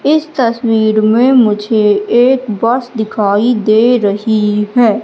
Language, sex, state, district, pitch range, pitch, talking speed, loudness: Hindi, female, Madhya Pradesh, Katni, 215-245 Hz, 220 Hz, 120 wpm, -11 LUFS